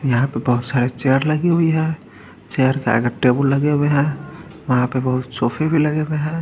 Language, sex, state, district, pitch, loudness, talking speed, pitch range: Hindi, male, Haryana, Charkhi Dadri, 140 Hz, -18 LUFS, 215 wpm, 125-155 Hz